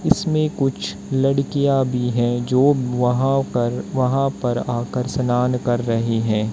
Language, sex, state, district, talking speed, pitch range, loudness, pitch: Hindi, male, Haryana, Jhajjar, 140 wpm, 120-135 Hz, -20 LUFS, 125 Hz